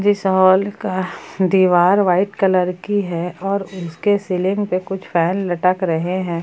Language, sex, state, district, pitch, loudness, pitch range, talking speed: Hindi, female, Jharkhand, Palamu, 185 Hz, -18 LUFS, 180-195 Hz, 160 wpm